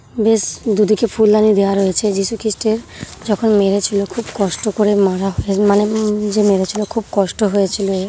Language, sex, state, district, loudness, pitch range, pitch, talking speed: Bengali, female, West Bengal, Jhargram, -16 LUFS, 195-215 Hz, 210 Hz, 150 wpm